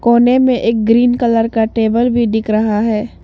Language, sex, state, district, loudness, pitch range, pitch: Hindi, female, Arunachal Pradesh, Papum Pare, -13 LUFS, 220-240 Hz, 230 Hz